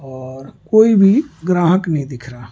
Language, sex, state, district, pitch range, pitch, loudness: Hindi, male, Delhi, New Delhi, 130-195 Hz, 160 Hz, -14 LUFS